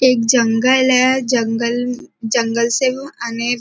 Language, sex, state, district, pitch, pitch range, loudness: Hindi, female, Maharashtra, Nagpur, 245 Hz, 235-260 Hz, -16 LUFS